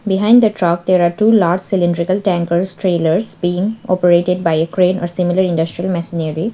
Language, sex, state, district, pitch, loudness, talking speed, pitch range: English, female, Sikkim, Gangtok, 180 Hz, -15 LUFS, 175 wpm, 175-190 Hz